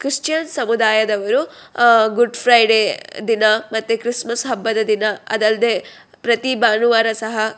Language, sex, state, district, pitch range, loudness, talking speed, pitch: Kannada, female, Karnataka, Shimoga, 220-235 Hz, -17 LUFS, 110 wpm, 225 Hz